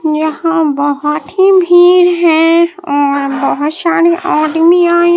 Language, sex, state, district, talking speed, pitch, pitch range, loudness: Hindi, male, Bihar, Katihar, 115 wpm, 330 Hz, 300-345 Hz, -10 LUFS